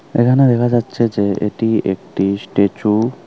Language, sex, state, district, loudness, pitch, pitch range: Bengali, male, Tripura, Unakoti, -16 LUFS, 110 Hz, 100-120 Hz